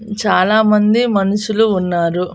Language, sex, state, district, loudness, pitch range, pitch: Telugu, female, Andhra Pradesh, Annamaya, -14 LUFS, 185-220 Hz, 210 Hz